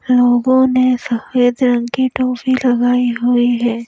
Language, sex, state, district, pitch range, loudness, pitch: Hindi, female, Madhya Pradesh, Bhopal, 240-255 Hz, -14 LUFS, 245 Hz